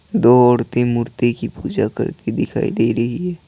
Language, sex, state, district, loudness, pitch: Hindi, male, Assam, Kamrup Metropolitan, -17 LUFS, 120 Hz